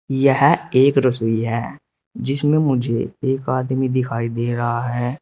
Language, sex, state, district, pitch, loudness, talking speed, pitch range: Hindi, male, Uttar Pradesh, Shamli, 130 Hz, -18 LUFS, 140 wpm, 120-135 Hz